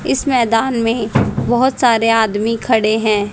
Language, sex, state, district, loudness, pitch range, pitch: Hindi, female, Haryana, Jhajjar, -15 LUFS, 220-245 Hz, 230 Hz